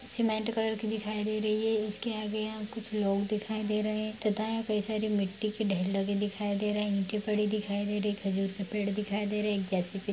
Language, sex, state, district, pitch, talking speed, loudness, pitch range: Hindi, female, Jharkhand, Sahebganj, 210 Hz, 245 wpm, -28 LUFS, 205-215 Hz